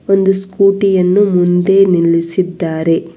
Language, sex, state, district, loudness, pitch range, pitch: Kannada, female, Karnataka, Bangalore, -12 LUFS, 175-195 Hz, 185 Hz